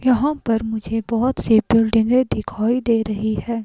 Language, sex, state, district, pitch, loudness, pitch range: Hindi, female, Himachal Pradesh, Shimla, 225 Hz, -19 LUFS, 220-245 Hz